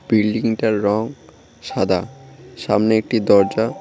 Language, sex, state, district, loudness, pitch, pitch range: Bengali, male, West Bengal, Cooch Behar, -18 LUFS, 110 Hz, 105-115 Hz